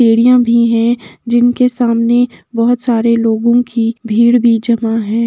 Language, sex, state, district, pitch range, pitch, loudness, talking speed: Hindi, female, Uttar Pradesh, Etah, 230-240 Hz, 235 Hz, -12 LUFS, 135 wpm